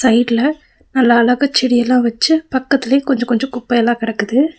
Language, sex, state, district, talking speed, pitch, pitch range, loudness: Tamil, female, Tamil Nadu, Nilgiris, 130 wpm, 250 Hz, 235-275 Hz, -15 LUFS